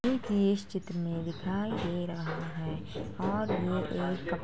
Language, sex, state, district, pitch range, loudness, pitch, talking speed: Hindi, female, Uttar Pradesh, Jalaun, 165-195 Hz, -33 LUFS, 175 Hz, 150 wpm